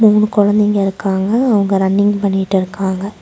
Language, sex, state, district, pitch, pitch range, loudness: Tamil, female, Tamil Nadu, Nilgiris, 200 Hz, 195-210 Hz, -14 LUFS